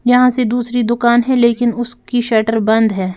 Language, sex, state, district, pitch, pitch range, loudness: Hindi, female, Bihar, Patna, 240 Hz, 225-245 Hz, -14 LUFS